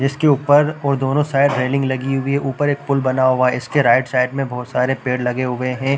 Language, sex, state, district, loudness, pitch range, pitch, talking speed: Hindi, male, Chhattisgarh, Balrampur, -17 LUFS, 130-140 Hz, 135 Hz, 250 wpm